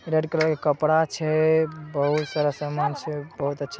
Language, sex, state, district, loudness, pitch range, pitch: Maithili, male, Bihar, Saharsa, -24 LUFS, 145-160 Hz, 155 Hz